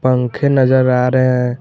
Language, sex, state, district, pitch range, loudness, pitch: Hindi, male, Jharkhand, Garhwa, 125-130 Hz, -14 LUFS, 130 Hz